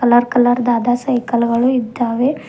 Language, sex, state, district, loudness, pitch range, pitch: Kannada, female, Karnataka, Bidar, -16 LUFS, 240-245 Hz, 245 Hz